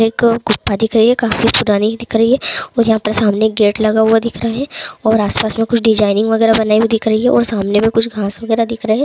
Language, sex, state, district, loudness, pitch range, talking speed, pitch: Hindi, male, Bihar, Begusarai, -14 LUFS, 215-230 Hz, 265 wpm, 225 Hz